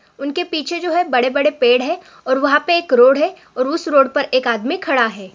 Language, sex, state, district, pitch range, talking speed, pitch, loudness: Hindi, female, Rajasthan, Churu, 255-335 Hz, 235 wpm, 285 Hz, -16 LUFS